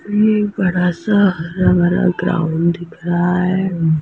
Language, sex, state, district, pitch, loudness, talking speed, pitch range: Hindi, female, Chhattisgarh, Rajnandgaon, 180 Hz, -16 LUFS, 150 wpm, 170-190 Hz